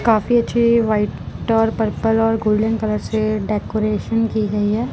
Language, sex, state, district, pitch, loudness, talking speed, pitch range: Hindi, male, Punjab, Kapurthala, 220 Hz, -18 LUFS, 160 wpm, 215-225 Hz